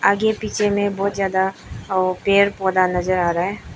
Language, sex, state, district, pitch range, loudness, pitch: Hindi, female, Arunachal Pradesh, Lower Dibang Valley, 185-200 Hz, -19 LUFS, 195 Hz